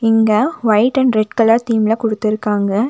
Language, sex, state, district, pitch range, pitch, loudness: Tamil, female, Tamil Nadu, Nilgiris, 215-230 Hz, 225 Hz, -15 LUFS